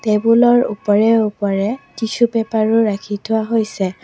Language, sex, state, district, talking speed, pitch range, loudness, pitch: Assamese, female, Assam, Kamrup Metropolitan, 150 wpm, 205-230 Hz, -16 LUFS, 220 Hz